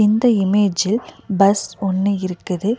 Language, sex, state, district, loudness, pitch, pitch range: Tamil, female, Tamil Nadu, Nilgiris, -18 LUFS, 200 Hz, 190-215 Hz